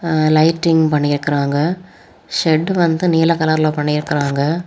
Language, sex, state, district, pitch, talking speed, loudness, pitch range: Tamil, female, Tamil Nadu, Kanyakumari, 155 Hz, 130 wpm, -16 LUFS, 150-165 Hz